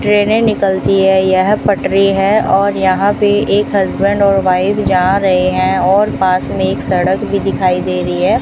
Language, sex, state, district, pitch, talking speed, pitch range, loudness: Hindi, female, Rajasthan, Bikaner, 195 Hz, 185 wpm, 185-205 Hz, -12 LUFS